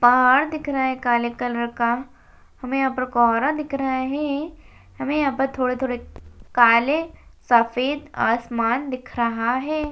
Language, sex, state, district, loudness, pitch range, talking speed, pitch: Hindi, female, Rajasthan, Nagaur, -21 LUFS, 235-280 Hz, 145 wpm, 255 Hz